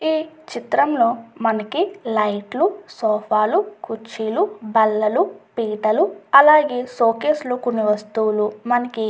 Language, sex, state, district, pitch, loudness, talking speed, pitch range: Telugu, female, Andhra Pradesh, Guntur, 230 Hz, -19 LUFS, 125 wpm, 215-290 Hz